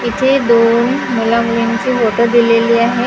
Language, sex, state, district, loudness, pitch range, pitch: Marathi, female, Maharashtra, Gondia, -12 LUFS, 230-245 Hz, 235 Hz